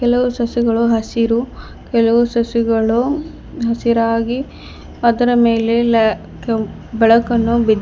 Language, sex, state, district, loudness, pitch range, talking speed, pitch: Kannada, female, Karnataka, Bidar, -16 LUFS, 230-240 Hz, 100 wpm, 235 Hz